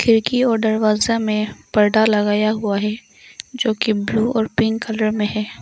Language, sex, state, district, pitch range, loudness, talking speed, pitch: Hindi, female, Arunachal Pradesh, Longding, 210-225 Hz, -18 LUFS, 170 wpm, 220 Hz